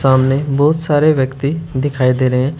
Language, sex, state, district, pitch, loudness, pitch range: Hindi, male, Uttar Pradesh, Shamli, 140 Hz, -15 LUFS, 130-150 Hz